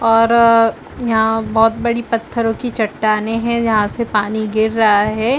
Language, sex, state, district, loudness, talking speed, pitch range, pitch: Hindi, female, Chhattisgarh, Bastar, -15 LUFS, 155 wpm, 220-235 Hz, 225 Hz